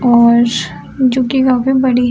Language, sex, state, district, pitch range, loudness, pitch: Hindi, female, Bihar, Sitamarhi, 240-260 Hz, -12 LUFS, 250 Hz